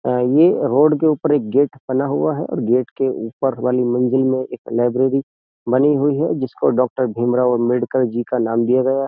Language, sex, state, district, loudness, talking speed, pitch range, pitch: Hindi, male, Uttar Pradesh, Jyotiba Phule Nagar, -18 LUFS, 200 wpm, 125-135 Hz, 130 Hz